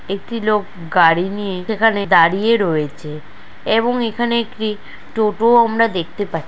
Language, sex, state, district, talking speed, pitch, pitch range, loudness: Bengali, female, West Bengal, Purulia, 130 wpm, 205 Hz, 165-225 Hz, -17 LUFS